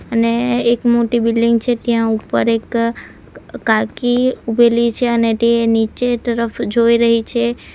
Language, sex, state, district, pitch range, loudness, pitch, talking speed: Gujarati, female, Gujarat, Valsad, 230-240 Hz, -16 LUFS, 235 Hz, 140 wpm